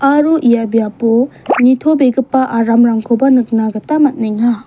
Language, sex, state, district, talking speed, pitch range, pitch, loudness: Garo, female, Meghalaya, West Garo Hills, 105 wpm, 230-265 Hz, 240 Hz, -12 LUFS